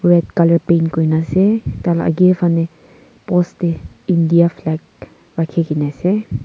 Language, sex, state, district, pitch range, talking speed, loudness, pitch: Nagamese, female, Nagaland, Kohima, 165-180 Hz, 150 wpm, -16 LUFS, 170 Hz